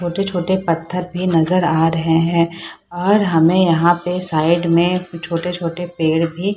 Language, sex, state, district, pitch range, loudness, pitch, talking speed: Hindi, female, Bihar, Saharsa, 165-180 Hz, -17 LUFS, 175 Hz, 155 wpm